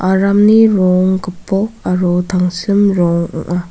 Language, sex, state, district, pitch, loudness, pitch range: Garo, female, Meghalaya, South Garo Hills, 185 Hz, -13 LUFS, 180-200 Hz